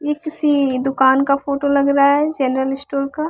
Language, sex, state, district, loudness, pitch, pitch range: Hindi, female, Bihar, West Champaran, -17 LUFS, 280 Hz, 270-290 Hz